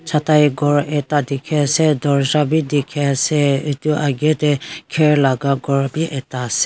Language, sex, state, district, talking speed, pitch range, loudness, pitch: Nagamese, female, Nagaland, Kohima, 160 wpm, 140-150 Hz, -17 LUFS, 145 Hz